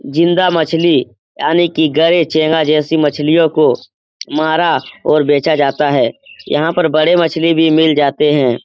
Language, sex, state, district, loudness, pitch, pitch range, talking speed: Hindi, male, Bihar, Lakhisarai, -13 LUFS, 155 Hz, 150-165 Hz, 155 wpm